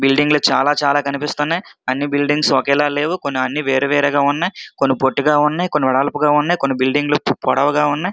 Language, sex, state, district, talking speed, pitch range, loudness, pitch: Telugu, male, Andhra Pradesh, Srikakulam, 185 wpm, 140-150 Hz, -17 LUFS, 145 Hz